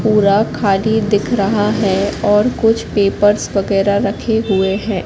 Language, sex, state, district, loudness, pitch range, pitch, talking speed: Hindi, female, Madhya Pradesh, Katni, -15 LUFS, 200-220 Hz, 205 Hz, 140 wpm